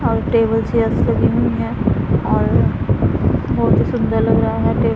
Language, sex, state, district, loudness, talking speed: Hindi, female, Punjab, Pathankot, -16 LUFS, 180 wpm